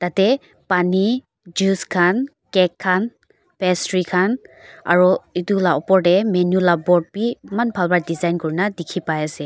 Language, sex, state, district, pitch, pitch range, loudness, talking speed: Nagamese, female, Nagaland, Dimapur, 185 Hz, 175-195 Hz, -19 LUFS, 165 wpm